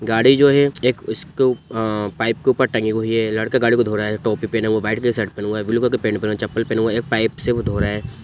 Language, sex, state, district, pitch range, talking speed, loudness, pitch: Hindi, male, Bihar, Sitamarhi, 110-120 Hz, 335 wpm, -19 LUFS, 110 Hz